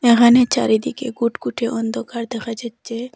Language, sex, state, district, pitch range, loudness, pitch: Bengali, female, Assam, Hailakandi, 230-240 Hz, -19 LUFS, 235 Hz